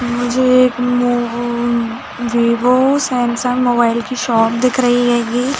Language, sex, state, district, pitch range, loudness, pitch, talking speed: Hindi, female, Chhattisgarh, Rajnandgaon, 240-250 Hz, -15 LUFS, 245 Hz, 130 wpm